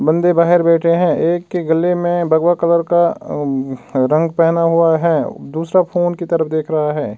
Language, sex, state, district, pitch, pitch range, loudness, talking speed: Hindi, male, Uttar Pradesh, Ghazipur, 170 Hz, 160-175 Hz, -15 LUFS, 185 wpm